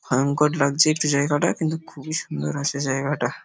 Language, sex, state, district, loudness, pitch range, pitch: Bengali, male, West Bengal, Paschim Medinipur, -22 LUFS, 140-155 Hz, 145 Hz